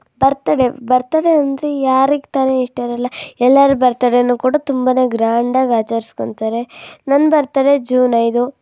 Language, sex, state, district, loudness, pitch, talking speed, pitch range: Kannada, female, Karnataka, Raichur, -15 LUFS, 255 Hz, 140 wpm, 245-275 Hz